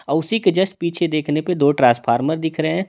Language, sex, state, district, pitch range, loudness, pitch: Hindi, male, Delhi, New Delhi, 150-180 Hz, -18 LUFS, 160 Hz